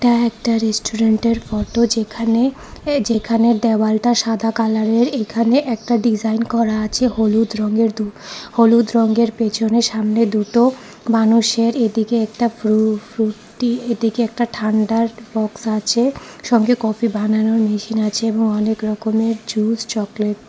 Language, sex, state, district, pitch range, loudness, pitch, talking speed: Bengali, female, Tripura, West Tripura, 220-230 Hz, -17 LUFS, 225 Hz, 130 wpm